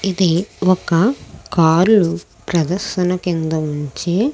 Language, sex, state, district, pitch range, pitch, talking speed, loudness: Telugu, female, Andhra Pradesh, Krishna, 165-190 Hz, 180 Hz, 95 wpm, -17 LUFS